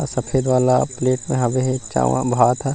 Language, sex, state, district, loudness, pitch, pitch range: Chhattisgarhi, male, Chhattisgarh, Rajnandgaon, -19 LUFS, 130 Hz, 125-130 Hz